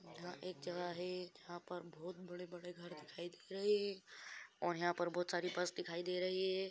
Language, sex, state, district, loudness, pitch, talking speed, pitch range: Hindi, male, Chhattisgarh, Balrampur, -43 LUFS, 180 Hz, 205 wpm, 175-180 Hz